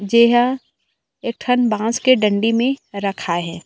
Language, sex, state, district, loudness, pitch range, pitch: Chhattisgarhi, female, Chhattisgarh, Rajnandgaon, -18 LUFS, 200-245 Hz, 230 Hz